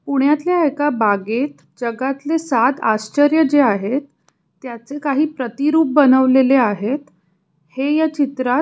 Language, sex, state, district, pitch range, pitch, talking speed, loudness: Marathi, female, Maharashtra, Pune, 235-295 Hz, 270 Hz, 120 wpm, -17 LUFS